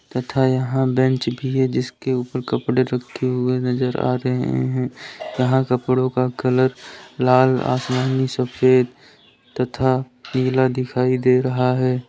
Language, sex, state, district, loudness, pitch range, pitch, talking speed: Hindi, male, Uttar Pradesh, Lalitpur, -20 LUFS, 125-130 Hz, 130 Hz, 135 wpm